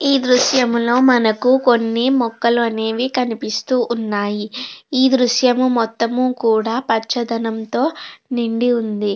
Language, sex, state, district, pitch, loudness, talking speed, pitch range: Telugu, female, Andhra Pradesh, Krishna, 240 Hz, -17 LUFS, 100 wpm, 225-255 Hz